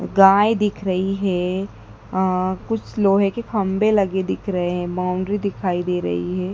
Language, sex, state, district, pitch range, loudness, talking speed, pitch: Hindi, female, Madhya Pradesh, Dhar, 180-200 Hz, -20 LUFS, 165 wpm, 190 Hz